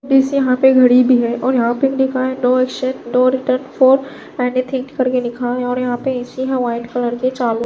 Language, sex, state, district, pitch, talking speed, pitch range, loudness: Hindi, female, Chhattisgarh, Raipur, 255 Hz, 245 wpm, 245-260 Hz, -16 LUFS